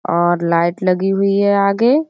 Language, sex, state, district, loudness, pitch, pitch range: Hindi, female, Uttar Pradesh, Budaun, -15 LUFS, 195 Hz, 175-200 Hz